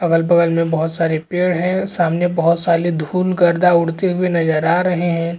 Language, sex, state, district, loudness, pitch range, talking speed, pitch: Hindi, male, Chhattisgarh, Rajnandgaon, -16 LUFS, 165-180 Hz, 190 wpm, 170 Hz